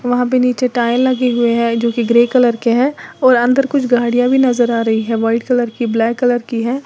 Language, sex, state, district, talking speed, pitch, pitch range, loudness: Hindi, female, Uttar Pradesh, Lalitpur, 255 wpm, 245 Hz, 235-255 Hz, -14 LUFS